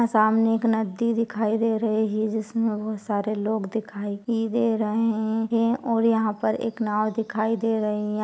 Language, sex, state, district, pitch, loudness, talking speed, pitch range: Hindi, female, Bihar, Purnia, 220 Hz, -24 LUFS, 180 wpm, 215-230 Hz